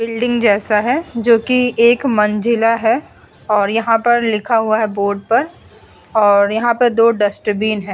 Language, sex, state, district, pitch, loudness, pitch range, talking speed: Hindi, female, Uttar Pradesh, Budaun, 225 Hz, -15 LUFS, 210-235 Hz, 160 wpm